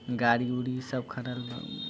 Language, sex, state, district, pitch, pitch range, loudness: Bhojpuri, male, Bihar, Sitamarhi, 125 Hz, 120-125 Hz, -31 LUFS